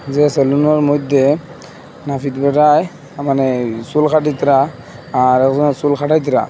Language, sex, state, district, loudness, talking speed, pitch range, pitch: Bengali, male, Assam, Hailakandi, -15 LUFS, 110 wpm, 135-150 Hz, 145 Hz